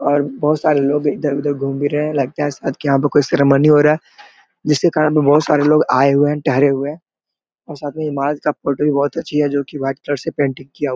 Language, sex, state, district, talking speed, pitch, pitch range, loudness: Hindi, male, Chhattisgarh, Korba, 245 wpm, 145 Hz, 140-150 Hz, -16 LUFS